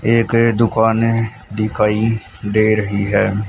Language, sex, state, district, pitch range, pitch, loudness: Hindi, male, Haryana, Charkhi Dadri, 105-115 Hz, 110 Hz, -16 LUFS